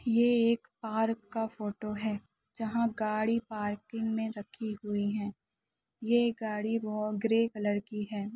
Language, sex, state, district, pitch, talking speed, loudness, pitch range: Hindi, male, Bihar, Bhagalpur, 220 Hz, 145 wpm, -32 LUFS, 210-230 Hz